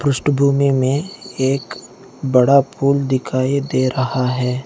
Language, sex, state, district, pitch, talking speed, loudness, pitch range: Hindi, male, Arunachal Pradesh, Lower Dibang Valley, 130 Hz, 115 wpm, -17 LUFS, 130-140 Hz